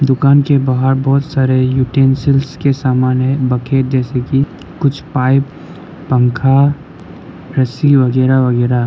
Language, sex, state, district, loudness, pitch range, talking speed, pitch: Hindi, male, Arunachal Pradesh, Lower Dibang Valley, -13 LUFS, 130-140 Hz, 130 wpm, 135 Hz